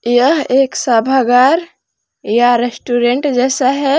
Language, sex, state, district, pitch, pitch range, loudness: Hindi, female, Jharkhand, Palamu, 255 Hz, 245-270 Hz, -13 LUFS